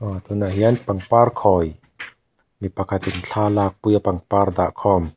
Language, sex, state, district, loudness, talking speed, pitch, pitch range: Mizo, male, Mizoram, Aizawl, -20 LUFS, 175 wpm, 100 Hz, 95-105 Hz